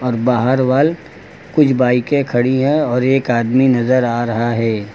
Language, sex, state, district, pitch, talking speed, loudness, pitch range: Hindi, male, Uttar Pradesh, Lucknow, 125 Hz, 160 wpm, -15 LUFS, 120-135 Hz